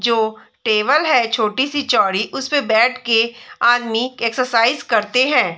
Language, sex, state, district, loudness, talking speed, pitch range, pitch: Hindi, female, Chhattisgarh, Bilaspur, -17 LUFS, 130 wpm, 225-255 Hz, 235 Hz